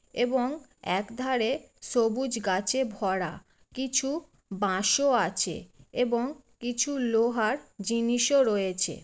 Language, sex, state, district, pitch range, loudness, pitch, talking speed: Bengali, female, West Bengal, Jalpaiguri, 205-265 Hz, -28 LUFS, 240 Hz, 85 wpm